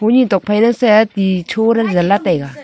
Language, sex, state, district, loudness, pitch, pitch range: Wancho, female, Arunachal Pradesh, Longding, -13 LUFS, 210 Hz, 185-225 Hz